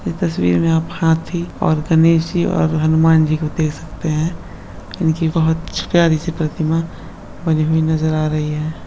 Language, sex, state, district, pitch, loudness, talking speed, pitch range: Hindi, male, West Bengal, Kolkata, 160 Hz, -17 LUFS, 175 wpm, 155-165 Hz